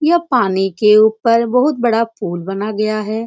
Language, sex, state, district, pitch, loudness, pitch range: Hindi, female, Uttar Pradesh, Etah, 220 Hz, -15 LUFS, 210-235 Hz